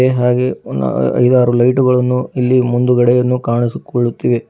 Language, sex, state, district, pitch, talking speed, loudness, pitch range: Kannada, female, Karnataka, Bidar, 125 Hz, 105 wpm, -14 LUFS, 120-125 Hz